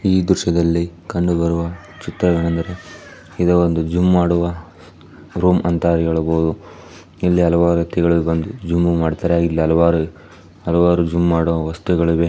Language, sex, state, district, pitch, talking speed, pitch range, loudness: Kannada, male, Karnataka, Chamarajanagar, 85 Hz, 105 wpm, 85-90 Hz, -17 LUFS